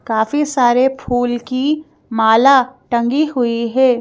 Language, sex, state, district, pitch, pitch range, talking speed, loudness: Hindi, female, Madhya Pradesh, Bhopal, 250 Hz, 235-270 Hz, 120 wpm, -15 LUFS